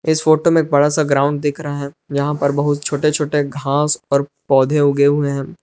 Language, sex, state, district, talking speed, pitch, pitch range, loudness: Hindi, male, Jharkhand, Palamu, 225 wpm, 145 Hz, 140-150 Hz, -17 LUFS